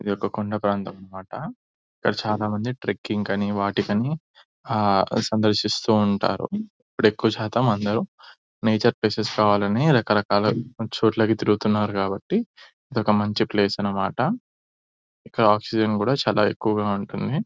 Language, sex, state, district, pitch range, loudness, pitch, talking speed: Telugu, male, Telangana, Nalgonda, 105-115 Hz, -23 LUFS, 105 Hz, 125 wpm